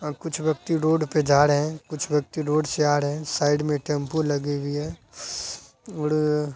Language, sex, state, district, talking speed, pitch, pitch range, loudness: Hindi, male, Bihar, Araria, 210 wpm, 150 Hz, 145-155 Hz, -24 LUFS